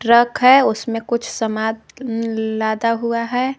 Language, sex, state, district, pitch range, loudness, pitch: Hindi, female, Jharkhand, Garhwa, 225-240 Hz, -18 LUFS, 230 Hz